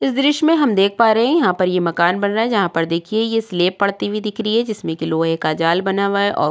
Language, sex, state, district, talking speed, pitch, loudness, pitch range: Hindi, female, Uttar Pradesh, Jyotiba Phule Nagar, 315 wpm, 200 Hz, -17 LUFS, 170-225 Hz